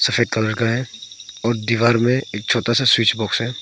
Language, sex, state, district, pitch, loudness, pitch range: Hindi, male, Arunachal Pradesh, Papum Pare, 115 Hz, -18 LUFS, 110-120 Hz